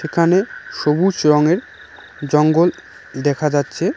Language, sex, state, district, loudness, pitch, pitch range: Bengali, male, West Bengal, Cooch Behar, -17 LUFS, 160 Hz, 150-180 Hz